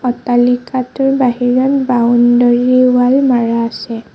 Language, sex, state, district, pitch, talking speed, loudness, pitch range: Assamese, female, Assam, Sonitpur, 245 Hz, 85 wpm, -12 LUFS, 240-255 Hz